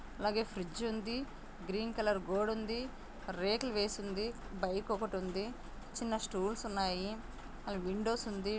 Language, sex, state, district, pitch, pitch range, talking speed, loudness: Telugu, female, Andhra Pradesh, Anantapur, 210 Hz, 195-225 Hz, 120 wpm, -38 LUFS